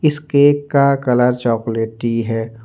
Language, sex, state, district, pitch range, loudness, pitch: Hindi, male, Jharkhand, Ranchi, 115-140 Hz, -16 LUFS, 125 Hz